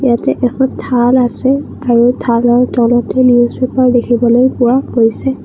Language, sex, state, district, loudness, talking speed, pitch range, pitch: Assamese, female, Assam, Kamrup Metropolitan, -12 LUFS, 130 wpm, 240-255 Hz, 245 Hz